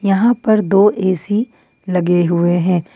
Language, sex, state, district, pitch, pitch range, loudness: Hindi, female, Jharkhand, Ranchi, 195 Hz, 175-210 Hz, -15 LUFS